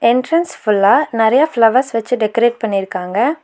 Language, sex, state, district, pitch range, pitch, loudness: Tamil, female, Tamil Nadu, Nilgiris, 215-255 Hz, 230 Hz, -15 LUFS